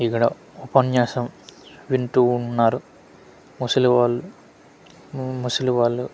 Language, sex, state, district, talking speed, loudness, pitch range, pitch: Telugu, male, Andhra Pradesh, Manyam, 90 wpm, -21 LUFS, 120-130 Hz, 125 Hz